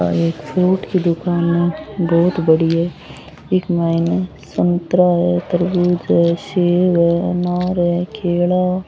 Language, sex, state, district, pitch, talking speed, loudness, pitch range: Rajasthani, female, Rajasthan, Churu, 175 Hz, 140 wpm, -17 LUFS, 170-180 Hz